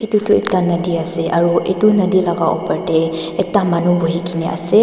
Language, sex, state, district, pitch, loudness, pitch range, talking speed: Nagamese, female, Nagaland, Dimapur, 175 Hz, -16 LUFS, 165-185 Hz, 185 wpm